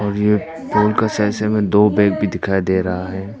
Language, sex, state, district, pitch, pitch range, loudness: Hindi, male, Arunachal Pradesh, Papum Pare, 105 Hz, 95-105 Hz, -17 LUFS